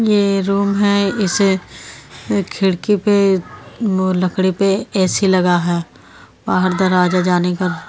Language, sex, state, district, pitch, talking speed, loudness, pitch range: Hindi, female, Delhi, New Delhi, 185 Hz, 120 wpm, -16 LUFS, 180-200 Hz